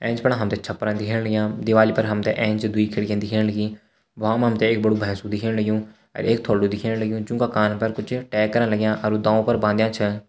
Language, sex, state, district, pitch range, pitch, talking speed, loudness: Hindi, male, Uttarakhand, Uttarkashi, 105-110 Hz, 110 Hz, 225 wpm, -22 LUFS